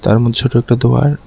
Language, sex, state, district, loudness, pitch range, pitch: Bengali, male, Tripura, West Tripura, -13 LUFS, 120-130 Hz, 120 Hz